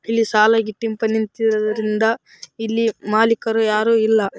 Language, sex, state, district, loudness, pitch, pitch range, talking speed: Kannada, female, Karnataka, Raichur, -18 LUFS, 220 Hz, 215-225 Hz, 110 wpm